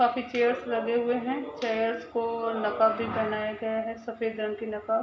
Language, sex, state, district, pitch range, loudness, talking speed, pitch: Hindi, female, Uttar Pradesh, Gorakhpur, 220-240 Hz, -29 LUFS, 200 wpm, 225 Hz